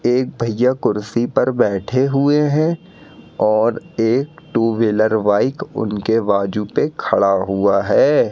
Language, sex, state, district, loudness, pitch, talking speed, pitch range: Hindi, male, Madhya Pradesh, Katni, -17 LUFS, 115 Hz, 130 wpm, 105-130 Hz